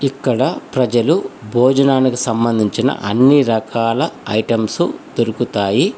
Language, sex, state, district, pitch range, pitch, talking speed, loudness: Telugu, male, Telangana, Hyderabad, 115-135 Hz, 120 Hz, 80 wpm, -16 LUFS